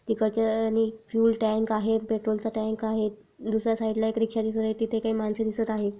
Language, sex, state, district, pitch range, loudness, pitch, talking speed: Marathi, female, Maharashtra, Sindhudurg, 220-225 Hz, -27 LUFS, 220 Hz, 190 wpm